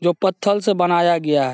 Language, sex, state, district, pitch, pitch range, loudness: Hindi, male, Bihar, Saharsa, 175 Hz, 170-195 Hz, -18 LUFS